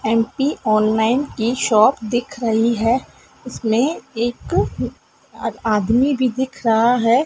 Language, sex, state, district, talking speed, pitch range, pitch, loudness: Hindi, female, Madhya Pradesh, Dhar, 115 wpm, 225-260 Hz, 235 Hz, -19 LUFS